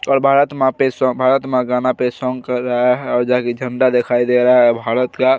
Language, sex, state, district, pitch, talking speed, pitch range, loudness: Hindi, male, Bihar, Araria, 125 Hz, 255 wpm, 125-130 Hz, -16 LUFS